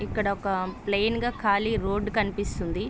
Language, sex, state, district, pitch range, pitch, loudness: Telugu, female, Andhra Pradesh, Visakhapatnam, 195-215 Hz, 205 Hz, -27 LUFS